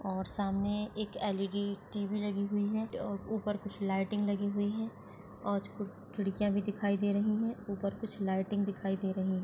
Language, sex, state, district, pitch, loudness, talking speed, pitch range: Hindi, female, Chhattisgarh, Jashpur, 205 Hz, -35 LUFS, 190 wpm, 195-205 Hz